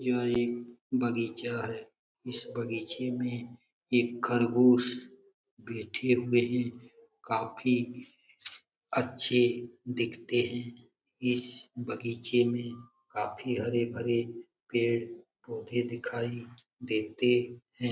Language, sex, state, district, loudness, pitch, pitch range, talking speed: Hindi, male, Bihar, Jamui, -31 LUFS, 120 Hz, 120-125 Hz, 85 wpm